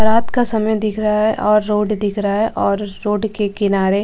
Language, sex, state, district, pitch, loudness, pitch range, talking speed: Hindi, female, Bihar, Katihar, 210 Hz, -17 LUFS, 205-215 Hz, 220 wpm